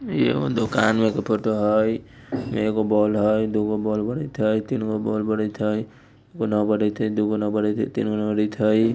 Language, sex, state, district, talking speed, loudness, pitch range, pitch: Hindi, female, Bihar, Muzaffarpur, 240 wpm, -23 LUFS, 105-110 Hz, 110 Hz